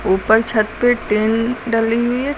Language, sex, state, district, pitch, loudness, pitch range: Hindi, female, Uttar Pradesh, Lucknow, 225 Hz, -17 LUFS, 215-240 Hz